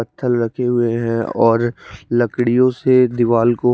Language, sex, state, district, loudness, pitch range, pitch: Hindi, male, Chandigarh, Chandigarh, -16 LUFS, 115-125 Hz, 120 Hz